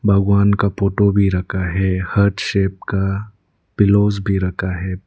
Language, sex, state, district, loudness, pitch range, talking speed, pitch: Hindi, male, Arunachal Pradesh, Lower Dibang Valley, -17 LUFS, 95-100 Hz, 155 wpm, 100 Hz